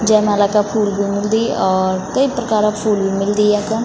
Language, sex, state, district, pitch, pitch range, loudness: Garhwali, female, Uttarakhand, Tehri Garhwal, 210 Hz, 200-220 Hz, -16 LUFS